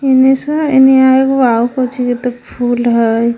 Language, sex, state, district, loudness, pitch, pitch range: Magahi, female, Jharkhand, Palamu, -11 LUFS, 250 Hz, 240-265 Hz